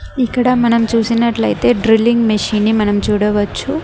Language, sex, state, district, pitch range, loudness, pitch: Telugu, female, Andhra Pradesh, Annamaya, 210-240 Hz, -14 LUFS, 230 Hz